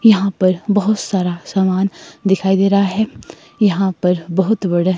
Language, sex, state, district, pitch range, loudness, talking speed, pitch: Hindi, female, Himachal Pradesh, Shimla, 185-205 Hz, -16 LUFS, 155 wpm, 195 Hz